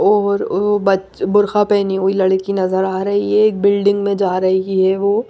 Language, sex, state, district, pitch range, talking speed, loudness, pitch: Hindi, female, Maharashtra, Mumbai Suburban, 190-205 Hz, 205 wpm, -16 LUFS, 200 Hz